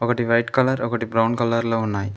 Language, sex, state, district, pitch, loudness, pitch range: Telugu, male, Telangana, Mahabubabad, 115 Hz, -21 LUFS, 115-120 Hz